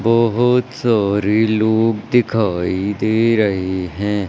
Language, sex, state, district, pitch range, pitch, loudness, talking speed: Hindi, male, Madhya Pradesh, Umaria, 100-115 Hz, 110 Hz, -17 LUFS, 100 wpm